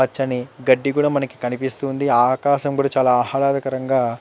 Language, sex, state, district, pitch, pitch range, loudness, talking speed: Telugu, male, Andhra Pradesh, Chittoor, 135 Hz, 125-140 Hz, -19 LUFS, 140 wpm